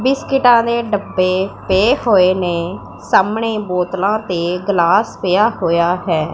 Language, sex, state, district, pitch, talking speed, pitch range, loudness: Punjabi, female, Punjab, Pathankot, 190 Hz, 125 wpm, 180-220 Hz, -15 LUFS